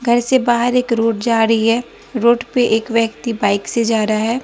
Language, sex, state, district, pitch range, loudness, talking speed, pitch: Hindi, female, Bihar, West Champaran, 225-240 Hz, -16 LUFS, 230 wpm, 230 Hz